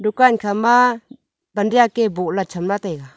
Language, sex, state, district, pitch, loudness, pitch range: Wancho, female, Arunachal Pradesh, Longding, 215 Hz, -17 LUFS, 195-240 Hz